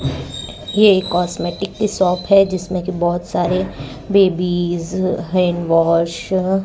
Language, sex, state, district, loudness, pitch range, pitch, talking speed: Hindi, male, Rajasthan, Bikaner, -17 LUFS, 175-190 Hz, 180 Hz, 115 wpm